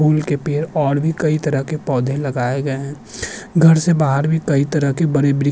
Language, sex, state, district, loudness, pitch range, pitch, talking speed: Hindi, male, Uttarakhand, Tehri Garhwal, -17 LUFS, 140-160 Hz, 150 Hz, 230 wpm